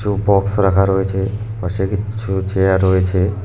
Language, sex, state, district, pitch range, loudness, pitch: Bengali, male, West Bengal, Cooch Behar, 95-100 Hz, -17 LUFS, 95 Hz